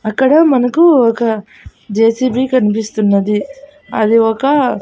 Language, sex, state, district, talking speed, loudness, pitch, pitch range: Telugu, female, Andhra Pradesh, Annamaya, 85 wpm, -13 LUFS, 235 Hz, 220-275 Hz